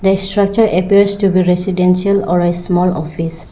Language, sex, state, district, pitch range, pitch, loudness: English, female, Arunachal Pradesh, Lower Dibang Valley, 175-200 Hz, 185 Hz, -13 LUFS